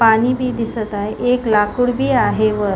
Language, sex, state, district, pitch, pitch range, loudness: Marathi, female, Maharashtra, Pune, 225 Hz, 215-250 Hz, -17 LUFS